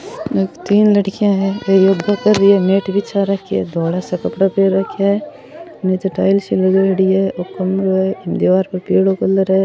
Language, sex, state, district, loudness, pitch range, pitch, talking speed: Rajasthani, female, Rajasthan, Churu, -15 LUFS, 190-200 Hz, 195 Hz, 55 wpm